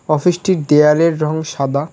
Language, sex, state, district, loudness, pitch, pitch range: Bengali, male, West Bengal, Cooch Behar, -15 LUFS, 155 Hz, 150-165 Hz